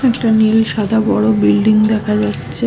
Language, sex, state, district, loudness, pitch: Bengali, female, West Bengal, Malda, -13 LUFS, 215 Hz